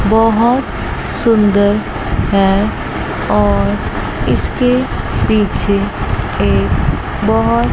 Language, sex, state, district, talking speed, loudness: Hindi, female, Chandigarh, Chandigarh, 60 wpm, -14 LUFS